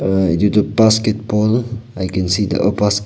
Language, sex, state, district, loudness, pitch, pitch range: Nagamese, male, Nagaland, Kohima, -16 LUFS, 105 Hz, 95-110 Hz